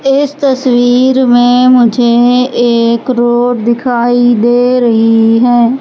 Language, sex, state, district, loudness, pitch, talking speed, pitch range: Hindi, female, Madhya Pradesh, Katni, -9 LUFS, 245 Hz, 105 wpm, 235-250 Hz